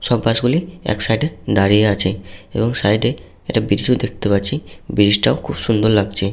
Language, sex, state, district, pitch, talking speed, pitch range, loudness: Bengali, male, West Bengal, Malda, 105 Hz, 190 wpm, 100-120 Hz, -17 LUFS